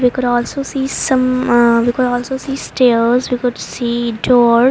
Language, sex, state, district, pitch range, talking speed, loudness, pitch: English, female, Haryana, Rohtak, 240-255 Hz, 190 wpm, -15 LUFS, 250 Hz